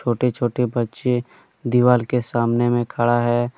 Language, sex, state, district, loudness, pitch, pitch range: Hindi, male, Jharkhand, Deoghar, -20 LUFS, 120 Hz, 120-125 Hz